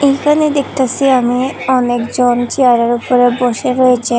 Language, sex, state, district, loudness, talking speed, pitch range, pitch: Bengali, female, Tripura, Unakoti, -13 LUFS, 115 wpm, 245-265 Hz, 250 Hz